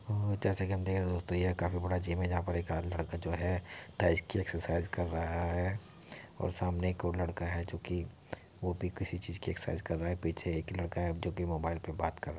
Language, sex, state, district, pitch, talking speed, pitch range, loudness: Hindi, male, Uttar Pradesh, Muzaffarnagar, 90 Hz, 260 wpm, 85-90 Hz, -36 LUFS